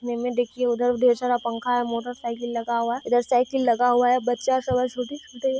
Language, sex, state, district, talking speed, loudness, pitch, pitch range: Hindi, female, Bihar, Purnia, 235 wpm, -23 LUFS, 245 Hz, 240-250 Hz